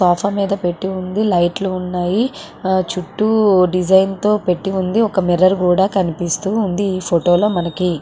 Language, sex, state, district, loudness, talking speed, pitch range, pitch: Telugu, female, Andhra Pradesh, Srikakulam, -16 LUFS, 165 wpm, 180-200 Hz, 190 Hz